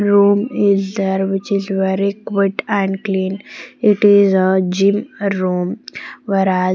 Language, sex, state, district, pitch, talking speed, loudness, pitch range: English, female, Punjab, Pathankot, 195 Hz, 135 wpm, -16 LUFS, 190-205 Hz